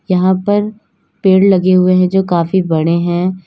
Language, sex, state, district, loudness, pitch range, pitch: Hindi, female, Uttar Pradesh, Lalitpur, -12 LUFS, 175-190 Hz, 185 Hz